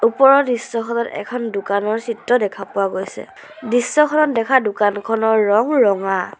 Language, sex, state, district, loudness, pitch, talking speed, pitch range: Assamese, female, Assam, Sonitpur, -17 LUFS, 230 Hz, 120 wpm, 205-245 Hz